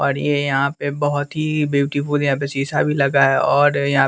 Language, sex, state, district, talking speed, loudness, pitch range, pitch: Hindi, male, Bihar, West Champaran, 235 wpm, -18 LUFS, 140-145 Hz, 145 Hz